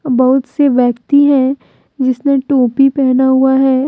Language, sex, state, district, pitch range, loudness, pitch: Hindi, female, Jharkhand, Deoghar, 255-275 Hz, -12 LUFS, 265 Hz